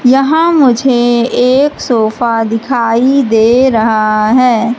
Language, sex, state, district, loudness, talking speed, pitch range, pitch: Hindi, female, Madhya Pradesh, Katni, -10 LUFS, 100 wpm, 225-265 Hz, 240 Hz